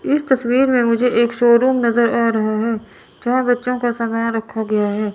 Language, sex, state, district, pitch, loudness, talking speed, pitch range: Hindi, female, Chandigarh, Chandigarh, 235 Hz, -17 LUFS, 200 wpm, 225-250 Hz